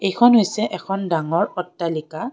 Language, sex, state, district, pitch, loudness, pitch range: Assamese, female, Assam, Kamrup Metropolitan, 195 Hz, -20 LUFS, 165-215 Hz